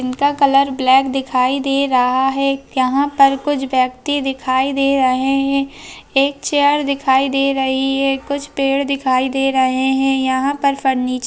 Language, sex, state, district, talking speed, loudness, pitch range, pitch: Hindi, female, Bihar, Bhagalpur, 165 wpm, -16 LUFS, 260-275 Hz, 270 Hz